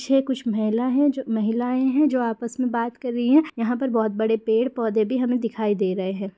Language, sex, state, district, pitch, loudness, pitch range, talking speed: Hindi, female, Uttar Pradesh, Gorakhpur, 235 Hz, -22 LUFS, 220-255 Hz, 245 wpm